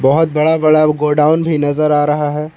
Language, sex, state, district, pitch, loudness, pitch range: Hindi, male, Jharkhand, Palamu, 150 Hz, -13 LUFS, 150-155 Hz